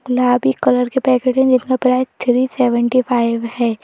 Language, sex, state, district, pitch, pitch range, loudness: Hindi, female, Madhya Pradesh, Bhopal, 250 Hz, 240-255 Hz, -16 LUFS